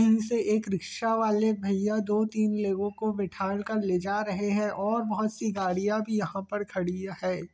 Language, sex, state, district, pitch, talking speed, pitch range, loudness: Hindi, male, Chhattisgarh, Bilaspur, 210 Hz, 185 wpm, 195-215 Hz, -28 LUFS